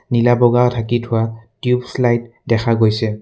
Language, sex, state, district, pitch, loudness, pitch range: Assamese, male, Assam, Kamrup Metropolitan, 120 Hz, -17 LUFS, 115-120 Hz